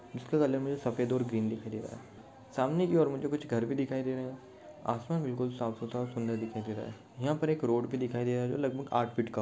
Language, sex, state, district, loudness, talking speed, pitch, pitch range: Hindi, male, Maharashtra, Nagpur, -33 LUFS, 255 wpm, 125 Hz, 115-135 Hz